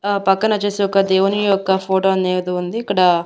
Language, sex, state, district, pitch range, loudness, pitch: Telugu, female, Andhra Pradesh, Annamaya, 190-200 Hz, -17 LUFS, 195 Hz